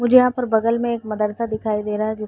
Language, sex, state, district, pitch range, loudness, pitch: Hindi, female, Uttar Pradesh, Varanasi, 215-240 Hz, -20 LUFS, 220 Hz